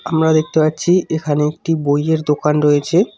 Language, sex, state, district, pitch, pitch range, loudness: Bengali, male, West Bengal, Cooch Behar, 155 Hz, 150-160 Hz, -16 LUFS